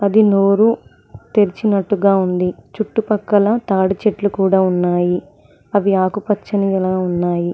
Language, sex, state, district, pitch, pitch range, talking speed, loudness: Telugu, female, Telangana, Mahabubabad, 195 Hz, 185-210 Hz, 105 wpm, -16 LUFS